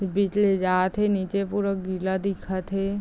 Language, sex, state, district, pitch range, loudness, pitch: Chhattisgarhi, female, Chhattisgarh, Raigarh, 190-200 Hz, -25 LUFS, 195 Hz